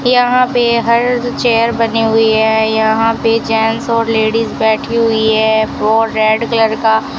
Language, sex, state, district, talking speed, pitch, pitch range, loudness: Hindi, female, Rajasthan, Bikaner, 165 wpm, 225 Hz, 220-235 Hz, -12 LUFS